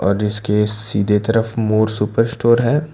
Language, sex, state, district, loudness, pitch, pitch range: Hindi, male, Karnataka, Bangalore, -17 LUFS, 110 Hz, 105-115 Hz